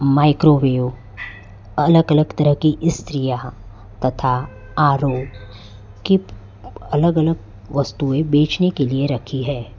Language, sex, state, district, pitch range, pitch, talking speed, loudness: Hindi, male, Gujarat, Valsad, 105-150 Hz, 135 Hz, 110 wpm, -18 LUFS